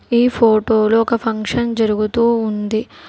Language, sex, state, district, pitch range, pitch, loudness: Telugu, female, Telangana, Hyderabad, 215-235 Hz, 225 Hz, -16 LUFS